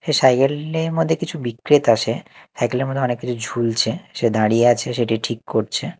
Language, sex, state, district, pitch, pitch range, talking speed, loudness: Bengali, male, Odisha, Nuapada, 120 Hz, 115-140 Hz, 180 wpm, -19 LUFS